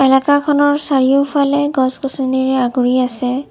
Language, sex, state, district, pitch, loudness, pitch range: Assamese, female, Assam, Kamrup Metropolitan, 265 Hz, -15 LUFS, 260-285 Hz